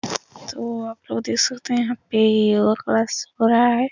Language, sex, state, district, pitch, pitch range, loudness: Hindi, female, Uttar Pradesh, Etah, 230 Hz, 215-240 Hz, -20 LUFS